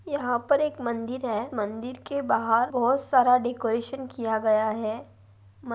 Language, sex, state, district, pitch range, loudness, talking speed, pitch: Hindi, female, Maharashtra, Nagpur, 220-255 Hz, -26 LUFS, 155 wpm, 235 Hz